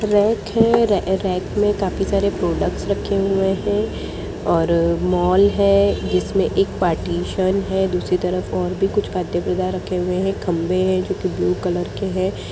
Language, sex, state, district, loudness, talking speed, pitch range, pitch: Hindi, female, Bihar, Jamui, -19 LUFS, 170 wpm, 180-200 Hz, 185 Hz